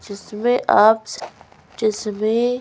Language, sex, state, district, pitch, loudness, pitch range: Hindi, female, Madhya Pradesh, Bhopal, 220 Hz, -18 LUFS, 210-235 Hz